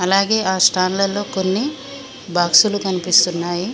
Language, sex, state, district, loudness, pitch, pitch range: Telugu, female, Telangana, Mahabubabad, -16 LUFS, 190 Hz, 180-210 Hz